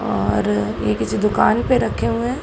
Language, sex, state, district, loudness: Hindi, female, Uttar Pradesh, Gorakhpur, -19 LUFS